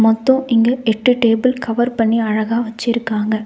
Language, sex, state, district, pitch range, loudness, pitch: Tamil, female, Tamil Nadu, Nilgiris, 225-245 Hz, -16 LUFS, 230 Hz